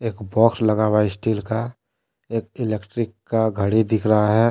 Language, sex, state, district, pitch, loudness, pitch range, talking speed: Hindi, male, Jharkhand, Deoghar, 110 Hz, -21 LUFS, 105-115 Hz, 175 wpm